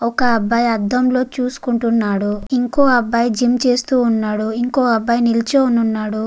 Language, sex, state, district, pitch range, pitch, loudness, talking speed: Telugu, female, Andhra Pradesh, Guntur, 225-250 Hz, 235 Hz, -16 LUFS, 145 wpm